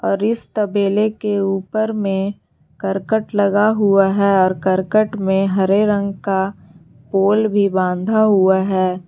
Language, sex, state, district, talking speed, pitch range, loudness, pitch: Hindi, female, Jharkhand, Garhwa, 140 wpm, 190-210 Hz, -17 LUFS, 200 Hz